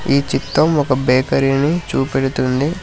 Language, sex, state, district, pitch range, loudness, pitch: Telugu, male, Telangana, Hyderabad, 130-150 Hz, -16 LUFS, 135 Hz